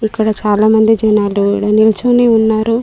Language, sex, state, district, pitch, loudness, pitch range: Telugu, female, Telangana, Mahabubabad, 220 Hz, -11 LUFS, 210-220 Hz